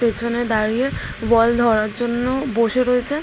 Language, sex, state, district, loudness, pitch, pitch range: Bengali, female, West Bengal, Jalpaiguri, -19 LUFS, 235 Hz, 230-250 Hz